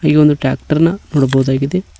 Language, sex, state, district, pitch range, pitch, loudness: Kannada, male, Karnataka, Koppal, 135-160 Hz, 150 Hz, -14 LUFS